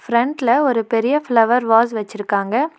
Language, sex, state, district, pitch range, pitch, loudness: Tamil, female, Tamil Nadu, Nilgiris, 225-250 Hz, 235 Hz, -17 LUFS